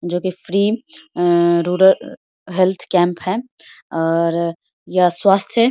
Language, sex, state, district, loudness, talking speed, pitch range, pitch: Hindi, female, Bihar, Samastipur, -17 LUFS, 115 wpm, 170-195 Hz, 180 Hz